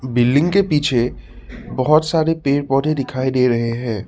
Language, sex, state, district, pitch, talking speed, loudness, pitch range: Hindi, male, Assam, Sonitpur, 135 Hz, 160 wpm, -17 LUFS, 125-150 Hz